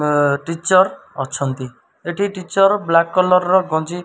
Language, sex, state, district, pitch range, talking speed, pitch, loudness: Odia, male, Odisha, Malkangiri, 145-185 Hz, 150 wpm, 170 Hz, -17 LUFS